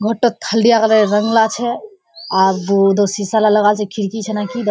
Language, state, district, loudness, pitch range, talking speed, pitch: Surjapuri, Bihar, Kishanganj, -15 LUFS, 205-230 Hz, 230 wpm, 215 Hz